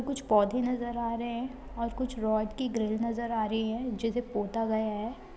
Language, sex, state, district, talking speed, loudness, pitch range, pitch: Hindi, female, Chhattisgarh, Bilaspur, 210 wpm, -31 LUFS, 220-245 Hz, 230 Hz